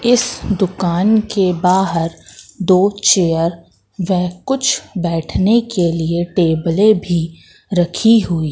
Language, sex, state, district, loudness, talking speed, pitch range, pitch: Hindi, female, Madhya Pradesh, Katni, -15 LUFS, 105 wpm, 170-205 Hz, 180 Hz